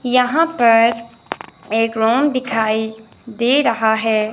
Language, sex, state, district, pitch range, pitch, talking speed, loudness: Hindi, male, Himachal Pradesh, Shimla, 220-250 Hz, 230 Hz, 110 wpm, -16 LUFS